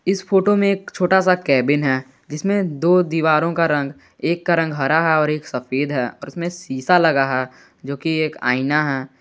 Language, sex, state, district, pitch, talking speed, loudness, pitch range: Hindi, male, Jharkhand, Garhwa, 155 Hz, 200 wpm, -19 LUFS, 135-175 Hz